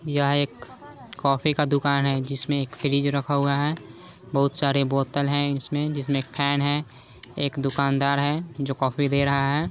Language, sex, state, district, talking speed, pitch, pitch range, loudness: Hindi, male, Bihar, Saran, 175 wpm, 140 Hz, 140-145 Hz, -23 LUFS